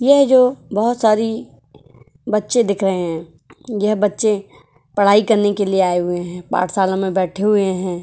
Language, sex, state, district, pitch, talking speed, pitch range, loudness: Hindi, female, Uttar Pradesh, Jyotiba Phule Nagar, 205 Hz, 165 wpm, 185-220 Hz, -17 LUFS